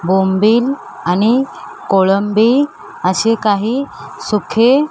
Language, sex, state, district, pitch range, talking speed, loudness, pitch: Marathi, female, Maharashtra, Mumbai Suburban, 195-255 Hz, 75 wpm, -14 LUFS, 220 Hz